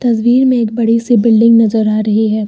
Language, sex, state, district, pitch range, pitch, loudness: Hindi, female, Uttar Pradesh, Lucknow, 220-235 Hz, 230 Hz, -11 LUFS